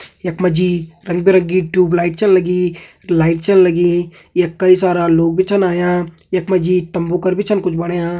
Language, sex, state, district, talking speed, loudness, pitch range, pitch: Hindi, male, Uttarakhand, Tehri Garhwal, 210 wpm, -15 LUFS, 175-185 Hz, 180 Hz